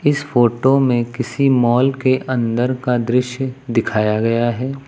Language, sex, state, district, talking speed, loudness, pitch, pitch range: Hindi, male, Uttar Pradesh, Lucknow, 145 wpm, -17 LUFS, 125 Hz, 120-135 Hz